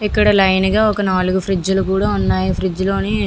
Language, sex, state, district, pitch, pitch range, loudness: Telugu, female, Andhra Pradesh, Visakhapatnam, 190 Hz, 185-205 Hz, -16 LUFS